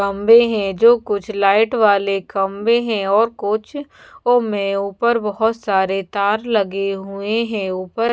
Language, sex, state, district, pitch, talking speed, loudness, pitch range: Hindi, female, Bihar, Patna, 210 Hz, 150 wpm, -17 LUFS, 195-230 Hz